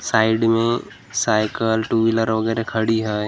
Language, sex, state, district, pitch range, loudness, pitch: Hindi, male, Maharashtra, Gondia, 110-115 Hz, -20 LUFS, 115 Hz